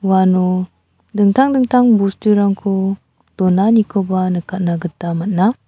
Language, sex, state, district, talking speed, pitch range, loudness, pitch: Garo, female, Meghalaya, South Garo Hills, 85 wpm, 185-210 Hz, -15 LUFS, 195 Hz